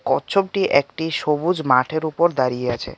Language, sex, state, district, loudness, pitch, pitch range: Bengali, male, Tripura, West Tripura, -20 LUFS, 155 Hz, 130-170 Hz